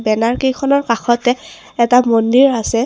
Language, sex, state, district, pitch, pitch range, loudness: Assamese, female, Assam, Kamrup Metropolitan, 240 Hz, 230-260 Hz, -14 LUFS